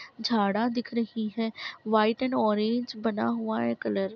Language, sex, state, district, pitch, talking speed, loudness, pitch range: Hindi, female, Uttarakhand, Tehri Garhwal, 220 Hz, 175 wpm, -28 LUFS, 140-230 Hz